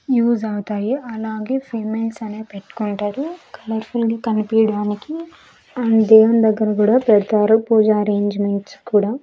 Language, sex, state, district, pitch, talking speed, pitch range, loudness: Telugu, female, Andhra Pradesh, Sri Satya Sai, 220 Hz, 115 wpm, 210-230 Hz, -18 LUFS